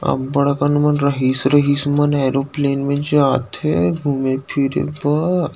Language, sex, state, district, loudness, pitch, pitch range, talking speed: Chhattisgarhi, male, Chhattisgarh, Rajnandgaon, -17 LUFS, 140 Hz, 135-145 Hz, 130 wpm